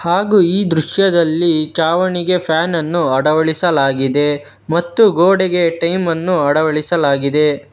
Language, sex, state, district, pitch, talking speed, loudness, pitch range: Kannada, male, Karnataka, Bangalore, 165 Hz, 95 wpm, -14 LUFS, 150-180 Hz